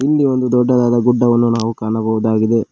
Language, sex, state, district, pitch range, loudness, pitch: Kannada, male, Karnataka, Koppal, 110-125 Hz, -15 LUFS, 120 Hz